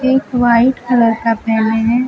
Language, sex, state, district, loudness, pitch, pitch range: Hindi, female, Uttar Pradesh, Lucknow, -14 LUFS, 235 Hz, 225-250 Hz